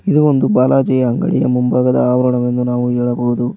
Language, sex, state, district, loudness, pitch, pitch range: Kannada, male, Karnataka, Koppal, -14 LUFS, 125 Hz, 120-125 Hz